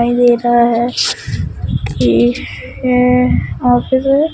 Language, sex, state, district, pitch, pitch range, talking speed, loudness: Hindi, female, Bihar, Katihar, 245 Hz, 235-250 Hz, 110 wpm, -14 LUFS